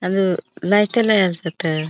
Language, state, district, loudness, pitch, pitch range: Bhili, Maharashtra, Dhule, -18 LUFS, 185 Hz, 165-205 Hz